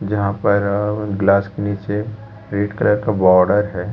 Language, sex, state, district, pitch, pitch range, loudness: Hindi, male, Chhattisgarh, Raipur, 100 Hz, 100-105 Hz, -18 LUFS